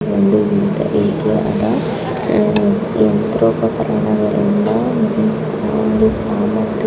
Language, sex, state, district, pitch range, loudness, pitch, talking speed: Kannada, female, Karnataka, Raichur, 200-215 Hz, -16 LUFS, 210 Hz, 50 wpm